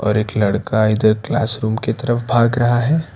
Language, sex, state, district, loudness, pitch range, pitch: Hindi, male, Karnataka, Bangalore, -17 LUFS, 110-120 Hz, 110 Hz